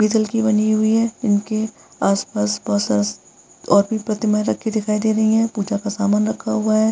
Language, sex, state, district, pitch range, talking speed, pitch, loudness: Hindi, female, Bihar, Vaishali, 205-220 Hz, 200 wpm, 215 Hz, -19 LUFS